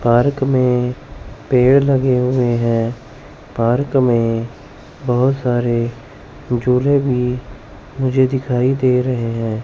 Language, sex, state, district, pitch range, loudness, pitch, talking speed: Hindi, male, Chandigarh, Chandigarh, 120-135 Hz, -17 LUFS, 125 Hz, 105 wpm